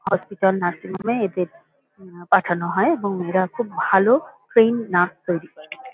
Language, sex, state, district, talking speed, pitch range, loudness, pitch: Bengali, female, West Bengal, Kolkata, 160 wpm, 175-200 Hz, -21 LUFS, 190 Hz